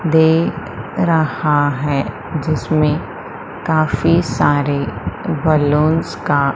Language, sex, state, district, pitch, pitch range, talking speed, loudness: Hindi, female, Madhya Pradesh, Umaria, 155 Hz, 145-160 Hz, 75 wpm, -17 LUFS